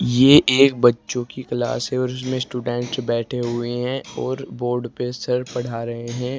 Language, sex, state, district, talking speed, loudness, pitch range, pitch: Hindi, male, Uttar Pradesh, Saharanpur, 170 wpm, -21 LUFS, 120-130 Hz, 125 Hz